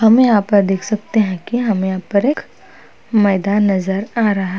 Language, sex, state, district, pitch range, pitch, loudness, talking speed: Hindi, female, Uttar Pradesh, Hamirpur, 195-220 Hz, 205 Hz, -16 LUFS, 210 wpm